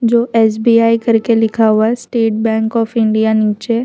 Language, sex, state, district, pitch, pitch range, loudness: Hindi, female, Gujarat, Valsad, 225 Hz, 220-230 Hz, -13 LUFS